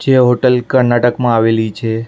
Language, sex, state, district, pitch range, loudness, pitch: Gujarati, male, Maharashtra, Mumbai Suburban, 115-125 Hz, -13 LUFS, 120 Hz